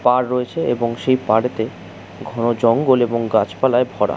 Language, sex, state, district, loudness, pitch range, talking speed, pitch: Bengali, male, West Bengal, Jhargram, -18 LUFS, 110-125 Hz, 130 wpm, 120 Hz